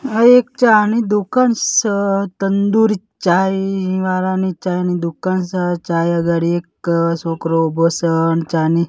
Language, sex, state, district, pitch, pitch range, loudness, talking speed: Gujarati, male, Gujarat, Gandhinagar, 185 Hz, 170-205 Hz, -16 LUFS, 120 wpm